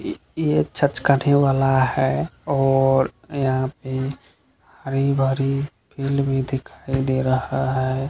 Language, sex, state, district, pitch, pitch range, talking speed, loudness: Hindi, male, Bihar, Kishanganj, 135 Hz, 130-140 Hz, 110 wpm, -21 LUFS